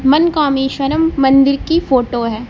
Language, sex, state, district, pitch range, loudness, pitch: Hindi, female, Uttar Pradesh, Lucknow, 265-305 Hz, -14 LUFS, 275 Hz